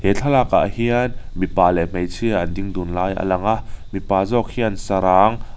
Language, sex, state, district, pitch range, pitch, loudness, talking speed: Mizo, male, Mizoram, Aizawl, 95-115 Hz, 100 Hz, -19 LUFS, 185 wpm